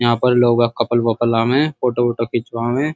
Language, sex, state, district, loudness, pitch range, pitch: Hindi, male, Uttar Pradesh, Muzaffarnagar, -17 LUFS, 120-125 Hz, 120 Hz